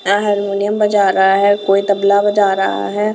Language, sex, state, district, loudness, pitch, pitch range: Hindi, female, Chhattisgarh, Raipur, -14 LUFS, 200 Hz, 195-205 Hz